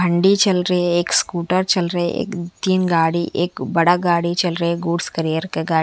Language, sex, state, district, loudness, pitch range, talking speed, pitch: Hindi, female, Haryana, Charkhi Dadri, -18 LUFS, 170-180 Hz, 225 wpm, 175 Hz